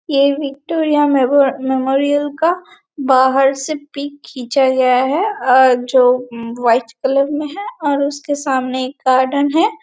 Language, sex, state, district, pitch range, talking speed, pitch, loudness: Hindi, female, Chhattisgarh, Bastar, 260-290 Hz, 140 wpm, 275 Hz, -15 LUFS